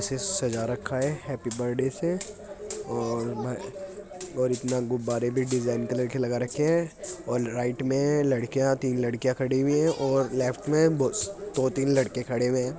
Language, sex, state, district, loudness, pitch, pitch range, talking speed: Hindi, male, Uttar Pradesh, Muzaffarnagar, -27 LUFS, 130 Hz, 125-150 Hz, 165 wpm